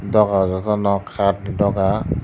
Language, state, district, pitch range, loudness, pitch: Kokborok, Tripura, Dhalai, 95-100 Hz, -19 LUFS, 100 Hz